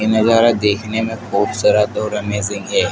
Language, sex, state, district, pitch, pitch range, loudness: Hindi, male, Madhya Pradesh, Dhar, 110 Hz, 105-115 Hz, -16 LUFS